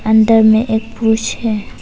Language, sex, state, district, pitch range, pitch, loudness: Hindi, female, Arunachal Pradesh, Papum Pare, 220-225 Hz, 220 Hz, -13 LUFS